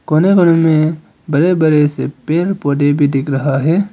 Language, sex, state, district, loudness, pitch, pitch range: Hindi, male, Arunachal Pradesh, Papum Pare, -13 LUFS, 155 Hz, 145-170 Hz